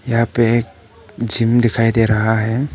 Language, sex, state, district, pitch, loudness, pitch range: Hindi, male, Arunachal Pradesh, Papum Pare, 115 Hz, -16 LUFS, 110-120 Hz